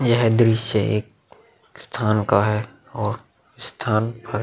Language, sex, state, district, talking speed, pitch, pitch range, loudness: Hindi, male, Uttar Pradesh, Muzaffarnagar, 135 wpm, 110 Hz, 105-115 Hz, -21 LUFS